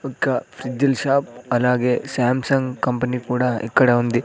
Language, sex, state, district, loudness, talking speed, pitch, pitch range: Telugu, male, Andhra Pradesh, Sri Satya Sai, -20 LUFS, 125 wpm, 125 Hz, 125-130 Hz